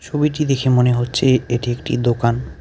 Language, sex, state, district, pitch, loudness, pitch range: Bengali, male, West Bengal, Alipurduar, 125 Hz, -18 LUFS, 120-135 Hz